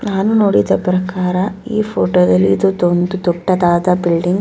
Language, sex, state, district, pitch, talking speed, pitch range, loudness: Kannada, female, Karnataka, Bellary, 180 Hz, 150 wpm, 170-195 Hz, -15 LUFS